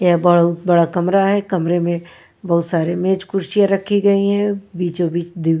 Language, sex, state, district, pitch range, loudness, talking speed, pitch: Hindi, female, Punjab, Pathankot, 170-195 Hz, -17 LUFS, 190 wpm, 175 Hz